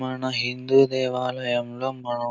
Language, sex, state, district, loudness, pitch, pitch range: Telugu, male, Andhra Pradesh, Anantapur, -24 LUFS, 125 Hz, 120-130 Hz